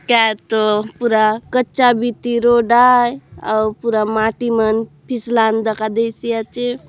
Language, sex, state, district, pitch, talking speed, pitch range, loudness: Halbi, female, Chhattisgarh, Bastar, 230 Hz, 120 wpm, 220-240 Hz, -16 LUFS